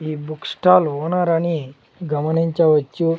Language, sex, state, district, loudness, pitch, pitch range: Telugu, male, Andhra Pradesh, Sri Satya Sai, -19 LUFS, 160 Hz, 150-170 Hz